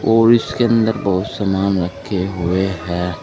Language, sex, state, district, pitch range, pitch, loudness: Hindi, male, Uttar Pradesh, Saharanpur, 90-110 Hz, 95 Hz, -17 LUFS